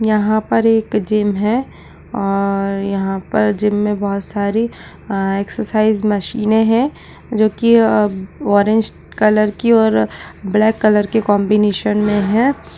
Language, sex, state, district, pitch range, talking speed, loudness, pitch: Hindi, female, Uttar Pradesh, Budaun, 200-220 Hz, 140 wpm, -16 LUFS, 210 Hz